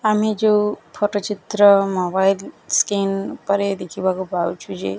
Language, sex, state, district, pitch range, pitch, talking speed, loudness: Odia, male, Odisha, Nuapada, 190-210 Hz, 200 Hz, 130 wpm, -19 LUFS